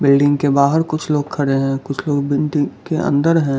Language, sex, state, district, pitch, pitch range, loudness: Hindi, male, Gujarat, Valsad, 145 Hz, 140-155 Hz, -17 LUFS